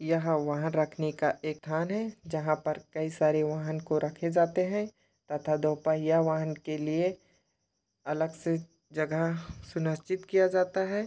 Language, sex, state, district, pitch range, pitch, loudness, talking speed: Hindi, male, Chhattisgarh, Korba, 155-170 Hz, 160 Hz, -30 LUFS, 150 wpm